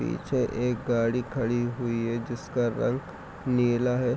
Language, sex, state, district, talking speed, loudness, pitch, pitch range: Hindi, male, Jharkhand, Sahebganj, 145 wpm, -28 LUFS, 120 Hz, 115-125 Hz